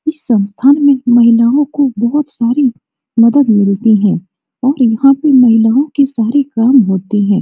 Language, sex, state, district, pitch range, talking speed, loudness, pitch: Hindi, female, Bihar, Supaul, 225-275 Hz, 155 wpm, -11 LUFS, 245 Hz